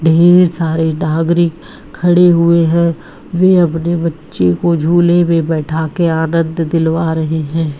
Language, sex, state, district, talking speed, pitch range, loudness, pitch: Hindi, male, Uttar Pradesh, Varanasi, 140 wpm, 160-170 Hz, -13 LUFS, 165 Hz